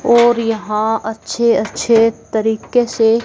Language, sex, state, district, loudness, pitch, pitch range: Hindi, female, Haryana, Charkhi Dadri, -15 LUFS, 225 Hz, 220-235 Hz